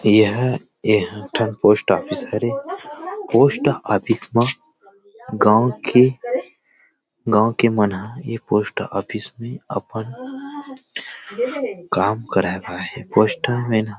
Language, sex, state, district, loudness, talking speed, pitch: Chhattisgarhi, male, Chhattisgarh, Rajnandgaon, -20 LUFS, 110 wpm, 120 Hz